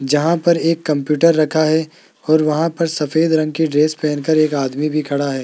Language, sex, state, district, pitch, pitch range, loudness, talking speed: Hindi, male, Rajasthan, Jaipur, 155 Hz, 150-160 Hz, -16 LUFS, 210 wpm